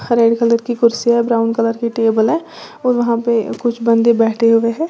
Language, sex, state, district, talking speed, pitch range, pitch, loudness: Hindi, female, Uttar Pradesh, Lalitpur, 210 wpm, 230-235 Hz, 235 Hz, -15 LUFS